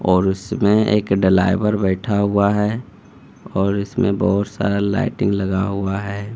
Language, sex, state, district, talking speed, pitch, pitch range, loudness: Hindi, male, Bihar, Gaya, 140 wpm, 100 Hz, 95-105 Hz, -18 LUFS